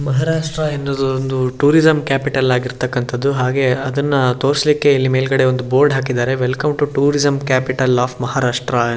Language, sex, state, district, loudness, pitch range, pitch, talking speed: Kannada, male, Karnataka, Shimoga, -16 LUFS, 125-145 Hz, 135 Hz, 140 wpm